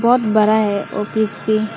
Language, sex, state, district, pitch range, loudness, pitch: Hindi, female, Tripura, West Tripura, 210-220 Hz, -17 LUFS, 215 Hz